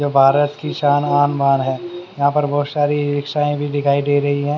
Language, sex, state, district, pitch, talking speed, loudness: Hindi, male, Haryana, Charkhi Dadri, 145 Hz, 225 wpm, -17 LUFS